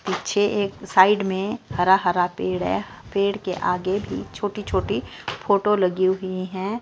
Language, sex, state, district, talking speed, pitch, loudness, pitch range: Hindi, female, Bihar, Katihar, 160 wpm, 190 Hz, -22 LUFS, 180-200 Hz